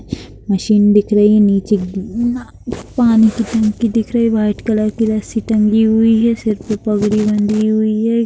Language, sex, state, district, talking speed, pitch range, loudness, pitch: Hindi, female, Bihar, East Champaran, 180 wpm, 210-225 Hz, -14 LUFS, 215 Hz